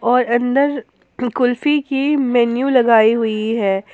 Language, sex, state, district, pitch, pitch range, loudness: Hindi, female, Jharkhand, Ranchi, 245 Hz, 230-270 Hz, -16 LUFS